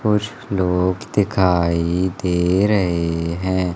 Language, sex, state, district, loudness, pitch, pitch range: Hindi, male, Madhya Pradesh, Umaria, -19 LUFS, 90 Hz, 85-100 Hz